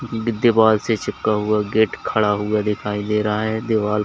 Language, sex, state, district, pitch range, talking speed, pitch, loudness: Hindi, male, Uttar Pradesh, Lalitpur, 105-110 Hz, 190 wpm, 105 Hz, -19 LUFS